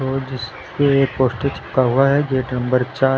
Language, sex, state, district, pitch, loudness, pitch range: Hindi, male, Uttar Pradesh, Lucknow, 130 Hz, -18 LUFS, 130-135 Hz